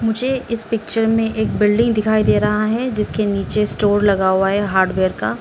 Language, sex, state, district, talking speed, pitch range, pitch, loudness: Hindi, female, Arunachal Pradesh, Lower Dibang Valley, 200 wpm, 205-225 Hz, 215 Hz, -17 LUFS